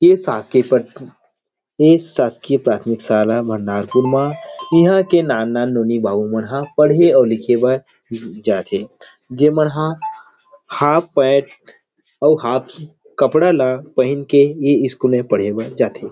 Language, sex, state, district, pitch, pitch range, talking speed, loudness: Chhattisgarhi, male, Chhattisgarh, Rajnandgaon, 135 Hz, 115-155 Hz, 150 wpm, -16 LUFS